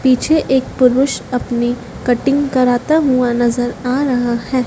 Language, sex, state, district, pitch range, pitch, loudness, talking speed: Hindi, female, Madhya Pradesh, Dhar, 245-270 Hz, 255 Hz, -15 LUFS, 140 wpm